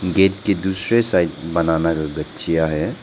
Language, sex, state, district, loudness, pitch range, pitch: Hindi, male, Arunachal Pradesh, Lower Dibang Valley, -19 LUFS, 80-95 Hz, 85 Hz